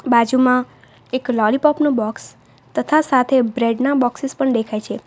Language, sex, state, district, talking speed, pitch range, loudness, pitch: Gujarati, female, Gujarat, Valsad, 155 wpm, 235-270 Hz, -18 LUFS, 250 Hz